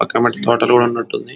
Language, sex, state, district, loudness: Telugu, male, Telangana, Nalgonda, -15 LUFS